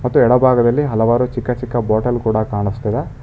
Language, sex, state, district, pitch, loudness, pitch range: Kannada, male, Karnataka, Bangalore, 120 Hz, -16 LUFS, 110-125 Hz